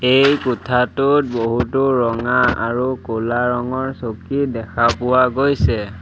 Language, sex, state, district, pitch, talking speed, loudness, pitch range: Assamese, male, Assam, Sonitpur, 125 Hz, 110 wpm, -18 LUFS, 115-130 Hz